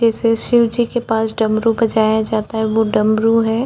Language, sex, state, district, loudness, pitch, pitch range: Hindi, female, Chhattisgarh, Korba, -16 LUFS, 225 Hz, 220-230 Hz